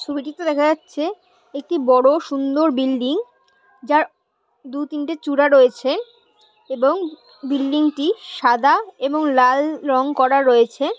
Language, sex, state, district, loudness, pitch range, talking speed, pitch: Bengali, female, West Bengal, Paschim Medinipur, -18 LUFS, 270-320 Hz, 110 wpm, 290 Hz